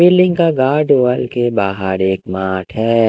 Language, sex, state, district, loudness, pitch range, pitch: Hindi, male, Himachal Pradesh, Shimla, -15 LUFS, 95-135 Hz, 115 Hz